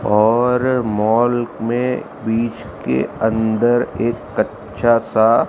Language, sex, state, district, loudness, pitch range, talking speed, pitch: Hindi, male, Maharashtra, Mumbai Suburban, -18 LUFS, 110-120 Hz, 100 wpm, 115 Hz